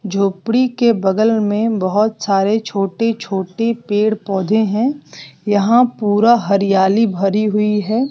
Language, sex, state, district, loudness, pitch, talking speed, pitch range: Hindi, female, Bihar, West Champaran, -16 LUFS, 210 Hz, 125 wpm, 200-225 Hz